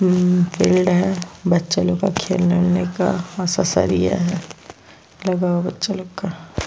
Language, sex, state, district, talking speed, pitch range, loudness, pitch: Hindi, female, Chhattisgarh, Sukma, 160 wpm, 175-185 Hz, -19 LUFS, 180 Hz